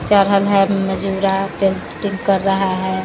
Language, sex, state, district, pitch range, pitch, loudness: Hindi, female, Bihar, Patna, 190-200 Hz, 195 Hz, -17 LUFS